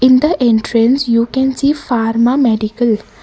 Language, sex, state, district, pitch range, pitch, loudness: English, female, Karnataka, Bangalore, 230-265 Hz, 240 Hz, -13 LUFS